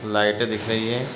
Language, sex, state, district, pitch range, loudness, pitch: Hindi, male, Chhattisgarh, Raigarh, 105-120 Hz, -23 LUFS, 110 Hz